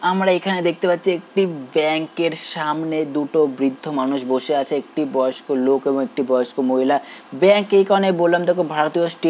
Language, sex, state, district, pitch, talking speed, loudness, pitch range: Bengali, male, West Bengal, Dakshin Dinajpur, 155 Hz, 170 wpm, -19 LUFS, 135-175 Hz